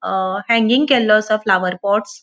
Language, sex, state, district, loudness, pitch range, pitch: Konkani, female, Goa, North and South Goa, -16 LUFS, 190-230 Hz, 215 Hz